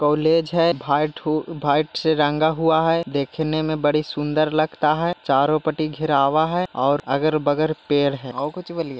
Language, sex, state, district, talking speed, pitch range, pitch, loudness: Hindi, male, Bihar, Jahanabad, 175 wpm, 145-160 Hz, 155 Hz, -21 LUFS